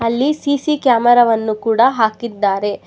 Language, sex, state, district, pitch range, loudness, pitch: Kannada, female, Karnataka, Bangalore, 220-270 Hz, -15 LUFS, 235 Hz